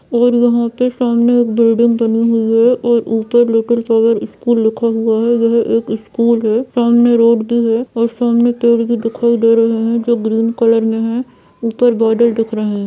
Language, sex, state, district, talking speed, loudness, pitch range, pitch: Hindi, female, Bihar, Saran, 200 wpm, -13 LUFS, 225-235 Hz, 230 Hz